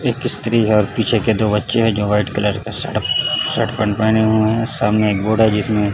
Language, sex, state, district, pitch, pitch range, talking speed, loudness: Hindi, male, Chhattisgarh, Raipur, 110 Hz, 105-115 Hz, 240 wpm, -17 LUFS